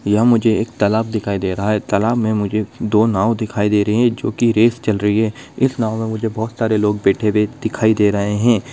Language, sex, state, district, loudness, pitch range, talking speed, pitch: Hindi, male, Bihar, Begusarai, -17 LUFS, 105-115 Hz, 245 wpm, 110 Hz